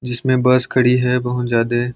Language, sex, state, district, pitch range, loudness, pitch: Hindi, male, Chhattisgarh, Balrampur, 120-125 Hz, -16 LUFS, 125 Hz